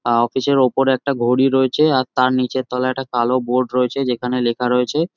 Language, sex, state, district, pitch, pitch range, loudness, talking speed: Bengali, male, West Bengal, Jhargram, 130 Hz, 125-135 Hz, -18 LUFS, 210 wpm